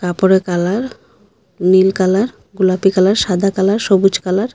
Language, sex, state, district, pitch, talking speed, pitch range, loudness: Bengali, female, Assam, Hailakandi, 190 Hz, 145 wpm, 185-200 Hz, -14 LUFS